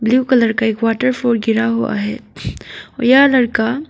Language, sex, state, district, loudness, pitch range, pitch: Hindi, female, Arunachal Pradesh, Papum Pare, -15 LUFS, 225-255 Hz, 235 Hz